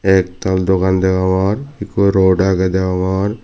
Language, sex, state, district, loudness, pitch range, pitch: Chakma, male, Tripura, Dhalai, -15 LUFS, 95-100 Hz, 95 Hz